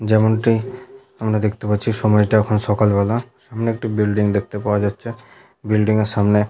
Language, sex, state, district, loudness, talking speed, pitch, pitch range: Bengali, male, West Bengal, Malda, -18 LUFS, 155 wpm, 110 Hz, 105-115 Hz